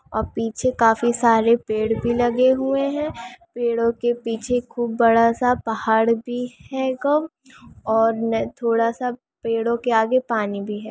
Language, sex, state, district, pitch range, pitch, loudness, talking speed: Hindi, female, Andhra Pradesh, Anantapur, 225-250 Hz, 235 Hz, -21 LUFS, 155 wpm